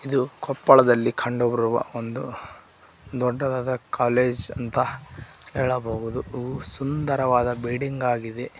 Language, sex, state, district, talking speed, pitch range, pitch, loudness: Kannada, male, Karnataka, Koppal, 85 wpm, 120-130 Hz, 125 Hz, -24 LUFS